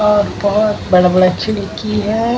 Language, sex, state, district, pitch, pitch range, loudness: Hindi, female, Bihar, Vaishali, 210 Hz, 200-215 Hz, -14 LUFS